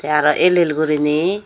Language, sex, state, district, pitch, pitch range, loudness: Chakma, female, Tripura, Dhalai, 155 Hz, 150-175 Hz, -16 LUFS